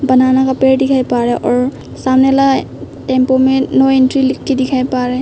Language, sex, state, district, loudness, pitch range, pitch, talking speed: Hindi, female, Arunachal Pradesh, Papum Pare, -13 LUFS, 255-265 Hz, 260 Hz, 185 wpm